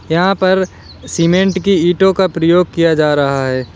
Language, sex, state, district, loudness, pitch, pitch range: Hindi, male, Uttar Pradesh, Lalitpur, -13 LUFS, 175 Hz, 160-190 Hz